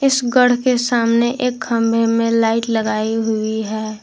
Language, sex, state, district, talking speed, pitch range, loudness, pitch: Hindi, female, Jharkhand, Garhwa, 165 wpm, 220-245 Hz, -17 LUFS, 230 Hz